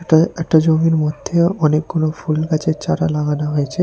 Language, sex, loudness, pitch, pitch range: Bengali, male, -17 LUFS, 155 Hz, 150-165 Hz